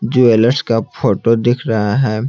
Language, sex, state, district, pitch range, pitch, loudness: Hindi, male, Bihar, Patna, 115-130 Hz, 115 Hz, -14 LUFS